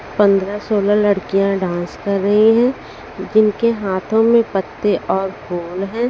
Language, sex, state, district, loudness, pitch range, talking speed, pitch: Hindi, female, Haryana, Rohtak, -17 LUFS, 190-215 Hz, 140 wpm, 205 Hz